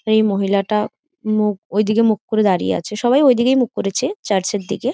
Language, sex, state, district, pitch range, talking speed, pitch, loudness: Bengali, female, West Bengal, Jhargram, 205-245 Hz, 135 wpm, 215 Hz, -17 LUFS